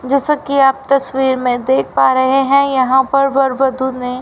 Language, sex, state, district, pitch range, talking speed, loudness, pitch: Hindi, female, Haryana, Rohtak, 255-275 Hz, 200 wpm, -14 LUFS, 265 Hz